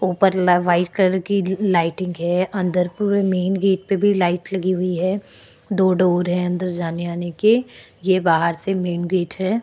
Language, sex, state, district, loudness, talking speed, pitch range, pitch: Hindi, female, Uttar Pradesh, Hamirpur, -20 LUFS, 185 wpm, 175-195 Hz, 185 Hz